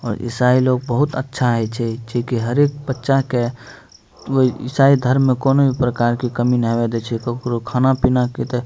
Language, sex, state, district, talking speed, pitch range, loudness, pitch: Maithili, male, Bihar, Madhepura, 200 wpm, 120-130 Hz, -18 LUFS, 125 Hz